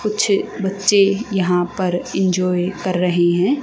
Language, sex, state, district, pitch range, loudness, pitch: Hindi, female, Haryana, Charkhi Dadri, 180-200 Hz, -18 LUFS, 190 Hz